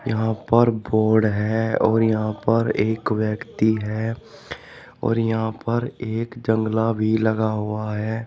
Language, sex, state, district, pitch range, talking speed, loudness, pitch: Hindi, male, Uttar Pradesh, Shamli, 110-115 Hz, 140 wpm, -22 LUFS, 110 Hz